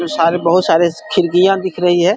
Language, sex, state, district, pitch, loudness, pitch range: Hindi, male, Bihar, Darbhanga, 175 Hz, -14 LUFS, 170-185 Hz